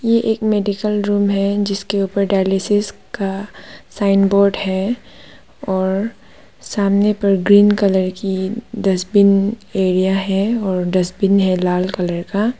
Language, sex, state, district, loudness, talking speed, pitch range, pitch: Hindi, female, Arunachal Pradesh, Papum Pare, -17 LUFS, 130 wpm, 190-205 Hz, 200 Hz